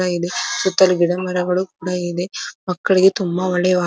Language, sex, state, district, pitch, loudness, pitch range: Kannada, female, Karnataka, Dharwad, 180 Hz, -18 LUFS, 180-185 Hz